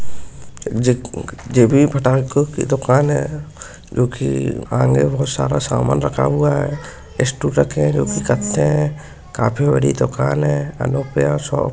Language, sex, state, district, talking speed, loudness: Hindi, male, West Bengal, Kolkata, 155 wpm, -17 LUFS